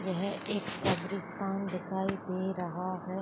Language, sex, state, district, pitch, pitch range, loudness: Hindi, female, Jharkhand, Sahebganj, 190 Hz, 185-195 Hz, -34 LUFS